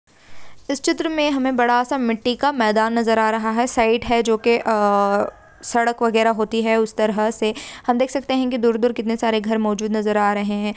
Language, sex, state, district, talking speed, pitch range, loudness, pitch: Hindi, female, Jharkhand, Sahebganj, 225 wpm, 220-245 Hz, -19 LUFS, 230 Hz